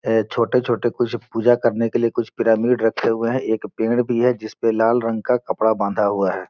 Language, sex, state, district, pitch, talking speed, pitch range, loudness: Hindi, male, Bihar, Gopalganj, 115 Hz, 220 wpm, 110-120 Hz, -20 LUFS